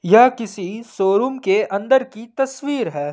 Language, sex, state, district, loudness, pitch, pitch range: Hindi, male, Jharkhand, Ranchi, -18 LUFS, 230 Hz, 200-265 Hz